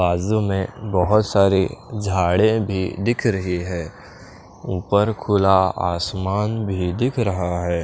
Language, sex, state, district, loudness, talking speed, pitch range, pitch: Hindi, male, Chandigarh, Chandigarh, -20 LUFS, 120 wpm, 90-105 Hz, 95 Hz